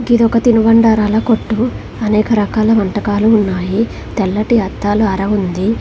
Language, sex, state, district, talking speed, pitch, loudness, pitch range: Telugu, female, Telangana, Hyderabad, 125 wpm, 215 Hz, -14 LUFS, 205-225 Hz